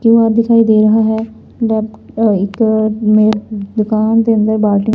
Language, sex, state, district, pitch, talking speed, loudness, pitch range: Punjabi, female, Punjab, Fazilka, 220 Hz, 110 wpm, -13 LUFS, 215-225 Hz